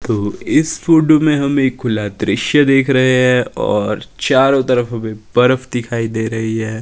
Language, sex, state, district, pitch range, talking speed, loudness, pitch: Hindi, male, Himachal Pradesh, Shimla, 110-135 Hz, 175 wpm, -15 LUFS, 125 Hz